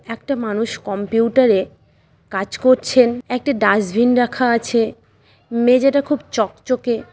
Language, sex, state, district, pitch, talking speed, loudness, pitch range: Bengali, female, West Bengal, Malda, 240 Hz, 120 wpm, -17 LUFS, 230-255 Hz